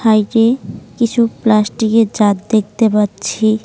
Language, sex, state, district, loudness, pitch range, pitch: Bengali, female, West Bengal, Cooch Behar, -14 LUFS, 215-230 Hz, 220 Hz